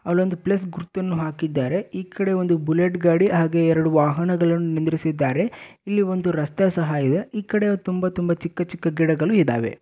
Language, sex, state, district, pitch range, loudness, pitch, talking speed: Kannada, male, Karnataka, Bellary, 160-185 Hz, -21 LUFS, 175 Hz, 105 wpm